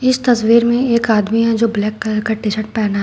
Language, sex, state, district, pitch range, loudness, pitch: Hindi, female, Uttar Pradesh, Shamli, 215-235 Hz, -15 LUFS, 225 Hz